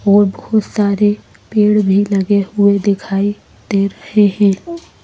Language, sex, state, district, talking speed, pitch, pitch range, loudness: Hindi, female, Madhya Pradesh, Bhopal, 130 wpm, 205 Hz, 200-210 Hz, -14 LUFS